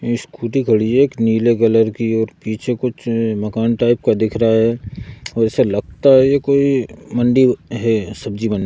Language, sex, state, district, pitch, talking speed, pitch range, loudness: Hindi, male, Madhya Pradesh, Bhopal, 115 Hz, 185 wpm, 110-125 Hz, -16 LUFS